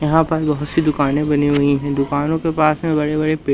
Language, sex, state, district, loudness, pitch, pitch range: Hindi, male, Madhya Pradesh, Umaria, -17 LUFS, 150 Hz, 145-155 Hz